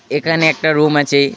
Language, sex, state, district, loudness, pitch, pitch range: Bengali, male, West Bengal, Alipurduar, -14 LUFS, 150 Hz, 145-155 Hz